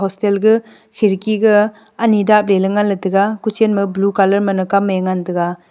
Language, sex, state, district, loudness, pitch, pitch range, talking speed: Wancho, female, Arunachal Pradesh, Longding, -15 LUFS, 200 Hz, 195-215 Hz, 190 wpm